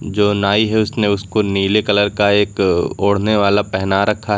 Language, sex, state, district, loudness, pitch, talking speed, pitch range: Hindi, male, Uttar Pradesh, Lucknow, -16 LUFS, 100 Hz, 190 wpm, 100-105 Hz